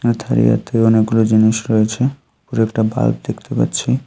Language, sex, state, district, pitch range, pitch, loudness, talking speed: Bengali, male, Tripura, Unakoti, 110-120 Hz, 110 Hz, -16 LUFS, 150 wpm